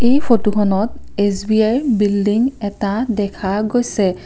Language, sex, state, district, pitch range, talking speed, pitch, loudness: Assamese, female, Assam, Kamrup Metropolitan, 205-235 Hz, 100 wpm, 210 Hz, -17 LUFS